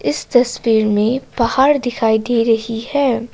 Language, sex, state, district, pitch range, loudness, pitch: Hindi, female, Assam, Kamrup Metropolitan, 225-245 Hz, -16 LUFS, 230 Hz